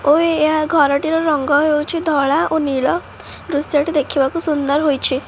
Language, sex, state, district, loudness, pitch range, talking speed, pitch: Odia, female, Odisha, Khordha, -16 LUFS, 285-310 Hz, 135 wpm, 295 Hz